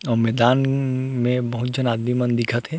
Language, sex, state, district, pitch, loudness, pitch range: Chhattisgarhi, male, Chhattisgarh, Rajnandgaon, 125 Hz, -21 LUFS, 120-130 Hz